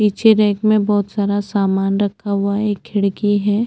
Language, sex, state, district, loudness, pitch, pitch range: Hindi, female, Chhattisgarh, Bastar, -17 LUFS, 205 Hz, 200-210 Hz